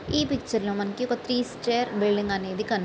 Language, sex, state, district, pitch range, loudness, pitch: Telugu, female, Andhra Pradesh, Srikakulam, 205-245 Hz, -27 LUFS, 225 Hz